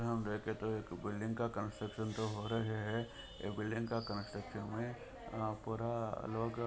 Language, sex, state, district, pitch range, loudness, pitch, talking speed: Hindi, male, Maharashtra, Chandrapur, 105-115 Hz, -41 LUFS, 110 Hz, 180 wpm